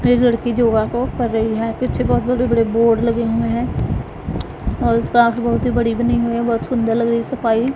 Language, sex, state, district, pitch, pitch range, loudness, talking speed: Hindi, female, Punjab, Pathankot, 235 Hz, 230-240 Hz, -18 LUFS, 215 wpm